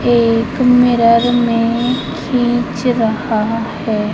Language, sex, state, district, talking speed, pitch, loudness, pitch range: Hindi, female, Madhya Pradesh, Katni, 85 wpm, 235 Hz, -14 LUFS, 230-245 Hz